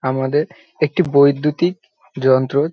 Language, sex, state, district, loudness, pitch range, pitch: Bengali, male, West Bengal, North 24 Parganas, -17 LUFS, 135-160 Hz, 145 Hz